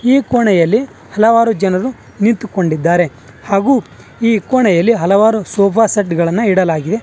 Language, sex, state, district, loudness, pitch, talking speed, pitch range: Kannada, male, Karnataka, Bangalore, -13 LUFS, 210 Hz, 110 wpm, 180-230 Hz